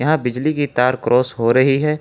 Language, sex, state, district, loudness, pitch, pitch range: Hindi, male, Jharkhand, Ranchi, -17 LUFS, 130 Hz, 125-150 Hz